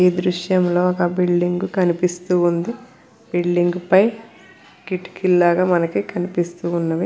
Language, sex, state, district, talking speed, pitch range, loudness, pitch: Telugu, female, Andhra Pradesh, Krishna, 110 wpm, 175-185 Hz, -19 LUFS, 180 Hz